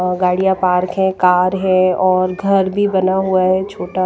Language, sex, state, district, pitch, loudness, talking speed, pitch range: Hindi, female, Himachal Pradesh, Shimla, 185 Hz, -15 LUFS, 175 wpm, 185-190 Hz